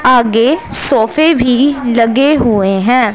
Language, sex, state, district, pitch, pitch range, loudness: Hindi, male, Punjab, Pathankot, 250 Hz, 230-280 Hz, -11 LUFS